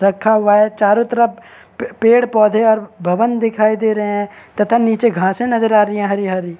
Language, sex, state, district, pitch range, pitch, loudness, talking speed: Hindi, female, Maharashtra, Aurangabad, 205-230 Hz, 215 Hz, -15 LUFS, 200 wpm